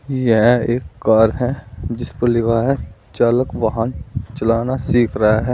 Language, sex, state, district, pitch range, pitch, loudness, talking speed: Hindi, male, Uttar Pradesh, Saharanpur, 110-125 Hz, 115 Hz, -17 LUFS, 150 wpm